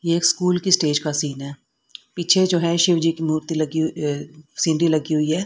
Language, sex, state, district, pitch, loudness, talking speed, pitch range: Hindi, female, Haryana, Rohtak, 160 Hz, -20 LUFS, 230 wpm, 155-175 Hz